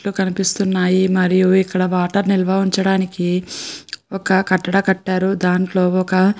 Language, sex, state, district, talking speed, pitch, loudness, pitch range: Telugu, female, Andhra Pradesh, Guntur, 110 wpm, 190 Hz, -17 LUFS, 185-195 Hz